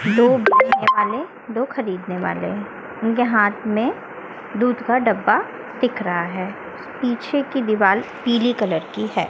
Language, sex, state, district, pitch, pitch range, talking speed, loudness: Hindi, female, Chhattisgarh, Raipur, 230 Hz, 205-250 Hz, 140 wpm, -20 LUFS